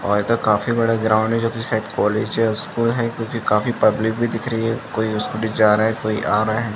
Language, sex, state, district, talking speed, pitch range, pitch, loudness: Hindi, male, Chhattisgarh, Rajnandgaon, 265 wpm, 105-115 Hz, 110 Hz, -19 LUFS